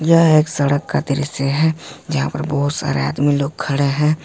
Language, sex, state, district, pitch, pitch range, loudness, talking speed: Hindi, male, Jharkhand, Ranchi, 145 Hz, 140-155 Hz, -18 LUFS, 200 wpm